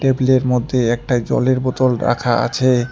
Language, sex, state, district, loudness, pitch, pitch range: Bengali, male, West Bengal, Alipurduar, -17 LUFS, 130 Hz, 120-130 Hz